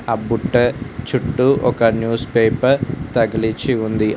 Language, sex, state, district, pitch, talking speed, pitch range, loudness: Telugu, male, Telangana, Mahabubabad, 115 Hz, 115 wpm, 110-125 Hz, -17 LUFS